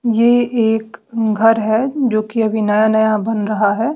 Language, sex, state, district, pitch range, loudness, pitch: Hindi, female, Bihar, West Champaran, 215-230 Hz, -15 LUFS, 220 Hz